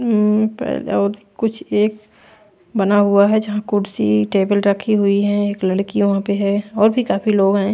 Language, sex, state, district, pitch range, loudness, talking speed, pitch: Hindi, female, Punjab, Pathankot, 200-215 Hz, -17 LUFS, 170 wpm, 205 Hz